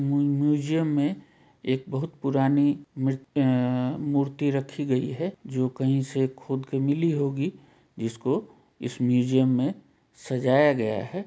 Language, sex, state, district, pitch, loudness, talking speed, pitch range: Hindi, male, Jharkhand, Jamtara, 135 Hz, -26 LUFS, 140 wpm, 130-145 Hz